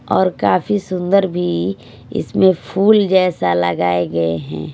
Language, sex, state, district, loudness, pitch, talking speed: Hindi, female, Haryana, Charkhi Dadri, -16 LUFS, 120 Hz, 125 wpm